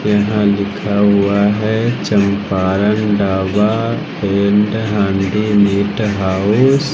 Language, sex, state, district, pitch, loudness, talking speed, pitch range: Hindi, male, Bihar, West Champaran, 100 Hz, -15 LUFS, 95 wpm, 100-105 Hz